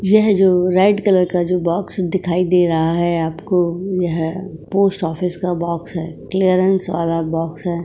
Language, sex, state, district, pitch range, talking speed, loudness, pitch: Hindi, female, Uttar Pradesh, Jyotiba Phule Nagar, 170-190 Hz, 170 wpm, -17 LUFS, 180 Hz